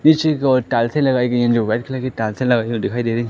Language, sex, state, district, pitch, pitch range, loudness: Hindi, male, Madhya Pradesh, Katni, 120 Hz, 115-130 Hz, -18 LUFS